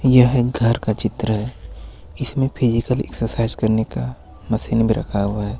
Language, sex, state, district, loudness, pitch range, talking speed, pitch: Hindi, male, Jharkhand, Ranchi, -20 LUFS, 100-125 Hz, 160 wpm, 110 Hz